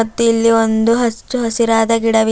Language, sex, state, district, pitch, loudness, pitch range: Kannada, female, Karnataka, Bidar, 230 Hz, -14 LUFS, 225-230 Hz